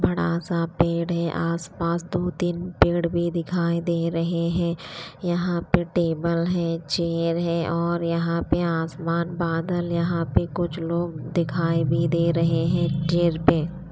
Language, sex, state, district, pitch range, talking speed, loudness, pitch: Hindi, female, Haryana, Rohtak, 165-170 Hz, 150 wpm, -24 LUFS, 170 Hz